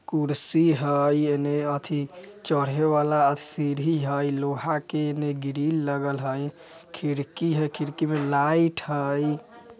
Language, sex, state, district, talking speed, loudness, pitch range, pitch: Bajjika, male, Bihar, Vaishali, 135 wpm, -25 LUFS, 140-160 Hz, 150 Hz